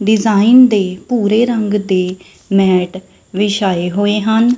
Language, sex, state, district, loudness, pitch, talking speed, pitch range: Punjabi, female, Punjab, Kapurthala, -13 LUFS, 205 Hz, 120 wpm, 190-220 Hz